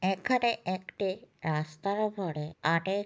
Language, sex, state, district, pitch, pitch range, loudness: Bengali, male, West Bengal, North 24 Parganas, 190 Hz, 165-210 Hz, -31 LUFS